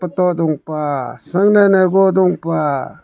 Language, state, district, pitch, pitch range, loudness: Nyishi, Arunachal Pradesh, Papum Pare, 180 Hz, 155-190 Hz, -15 LUFS